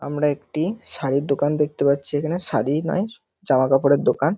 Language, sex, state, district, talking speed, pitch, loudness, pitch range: Bengali, male, West Bengal, North 24 Parganas, 165 wpm, 145 Hz, -21 LUFS, 140-165 Hz